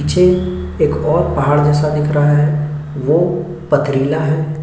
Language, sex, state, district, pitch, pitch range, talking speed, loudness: Hindi, male, Chhattisgarh, Sukma, 150 Hz, 145-155 Hz, 140 wpm, -15 LUFS